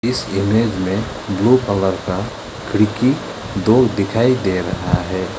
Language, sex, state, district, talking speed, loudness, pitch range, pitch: Hindi, male, West Bengal, Alipurduar, 135 wpm, -18 LUFS, 95-115 Hz, 105 Hz